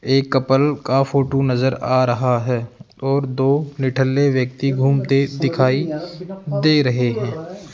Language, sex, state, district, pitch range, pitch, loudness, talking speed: Hindi, male, Rajasthan, Jaipur, 130-145 Hz, 135 Hz, -18 LUFS, 130 wpm